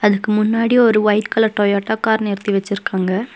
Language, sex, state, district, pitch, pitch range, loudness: Tamil, female, Tamil Nadu, Nilgiris, 215 Hz, 200-220 Hz, -16 LUFS